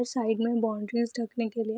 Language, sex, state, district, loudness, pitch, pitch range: Hindi, female, Bihar, Saharsa, -29 LUFS, 230 Hz, 225-235 Hz